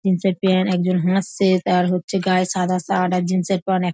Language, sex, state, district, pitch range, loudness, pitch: Bengali, female, West Bengal, North 24 Parganas, 180-190 Hz, -19 LUFS, 185 Hz